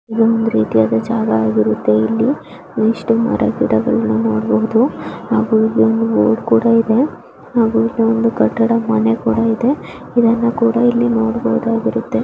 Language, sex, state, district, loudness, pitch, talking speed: Kannada, female, Karnataka, Dakshina Kannada, -15 LUFS, 225 Hz, 125 wpm